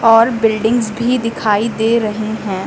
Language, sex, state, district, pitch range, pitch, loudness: Hindi, female, Uttar Pradesh, Lucknow, 215-230 Hz, 225 Hz, -15 LUFS